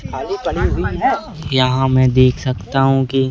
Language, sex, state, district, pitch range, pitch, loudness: Hindi, male, Madhya Pradesh, Bhopal, 130-135 Hz, 130 Hz, -16 LUFS